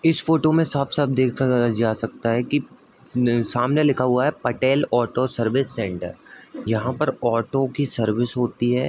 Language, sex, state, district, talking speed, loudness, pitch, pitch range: Hindi, male, Uttar Pradesh, Budaun, 175 wpm, -21 LUFS, 125 Hz, 115-135 Hz